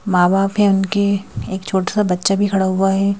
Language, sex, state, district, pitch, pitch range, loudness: Hindi, female, Madhya Pradesh, Bhopal, 195 Hz, 190-200 Hz, -17 LUFS